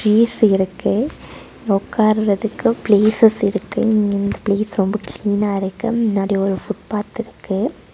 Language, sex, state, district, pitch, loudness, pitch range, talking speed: Tamil, female, Tamil Nadu, Nilgiris, 210 Hz, -18 LUFS, 200-220 Hz, 115 wpm